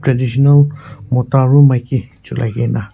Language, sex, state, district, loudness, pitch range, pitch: Nagamese, male, Nagaland, Kohima, -13 LUFS, 125-140 Hz, 130 Hz